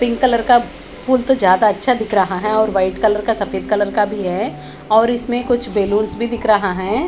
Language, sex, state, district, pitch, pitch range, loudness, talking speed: Hindi, female, Haryana, Charkhi Dadri, 215 Hz, 200-240 Hz, -16 LUFS, 230 wpm